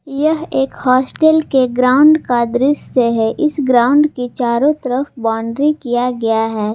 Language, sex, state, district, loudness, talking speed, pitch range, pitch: Hindi, female, Jharkhand, Palamu, -14 LUFS, 150 wpm, 240-290 Hz, 255 Hz